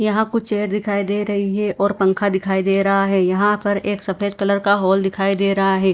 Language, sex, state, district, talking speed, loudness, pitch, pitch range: Hindi, female, Punjab, Fazilka, 230 wpm, -18 LUFS, 200 Hz, 195-205 Hz